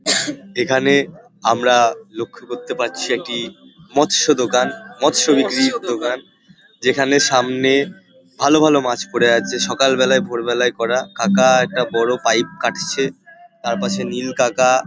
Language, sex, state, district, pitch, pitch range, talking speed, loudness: Bengali, male, West Bengal, Paschim Medinipur, 130 Hz, 120-140 Hz, 130 wpm, -17 LUFS